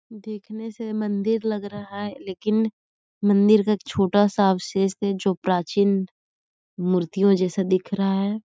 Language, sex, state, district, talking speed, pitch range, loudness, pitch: Hindi, female, Chhattisgarh, Sarguja, 135 wpm, 195-215 Hz, -22 LUFS, 200 Hz